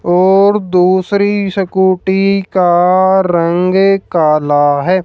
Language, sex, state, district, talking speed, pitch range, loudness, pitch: Hindi, female, Haryana, Jhajjar, 85 wpm, 175-195 Hz, -11 LUFS, 185 Hz